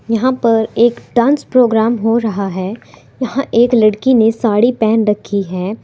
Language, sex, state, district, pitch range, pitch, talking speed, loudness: Hindi, female, Uttar Pradesh, Saharanpur, 215-240 Hz, 225 Hz, 165 wpm, -14 LUFS